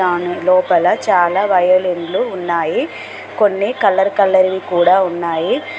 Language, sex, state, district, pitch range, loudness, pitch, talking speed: Telugu, female, Telangana, Mahabubabad, 175-190 Hz, -15 LUFS, 185 Hz, 115 wpm